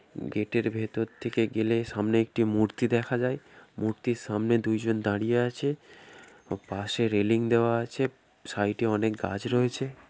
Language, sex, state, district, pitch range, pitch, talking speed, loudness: Bengali, male, West Bengal, Kolkata, 110-120 Hz, 115 Hz, 155 wpm, -28 LUFS